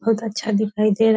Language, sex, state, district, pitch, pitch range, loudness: Hindi, female, Bihar, Purnia, 220 Hz, 215-225 Hz, -21 LUFS